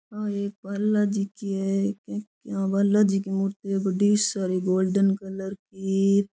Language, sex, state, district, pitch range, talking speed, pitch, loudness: Rajasthani, female, Rajasthan, Churu, 195-205 Hz, 140 wpm, 195 Hz, -25 LUFS